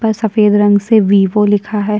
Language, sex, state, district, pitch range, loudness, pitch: Hindi, female, Chhattisgarh, Sukma, 205-215 Hz, -12 LUFS, 210 Hz